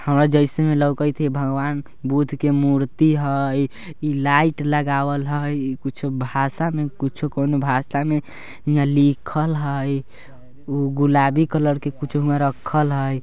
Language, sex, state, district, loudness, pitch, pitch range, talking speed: Bajjika, male, Bihar, Vaishali, -20 LUFS, 145 Hz, 140-150 Hz, 130 wpm